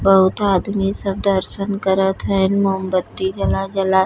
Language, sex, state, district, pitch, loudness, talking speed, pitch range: Bhojpuri, female, Uttar Pradesh, Deoria, 195 Hz, -18 LUFS, 135 wpm, 190-195 Hz